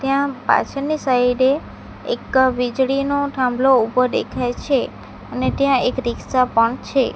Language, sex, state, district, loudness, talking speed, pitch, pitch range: Gujarati, female, Gujarat, Valsad, -19 LUFS, 125 wpm, 260 Hz, 250-275 Hz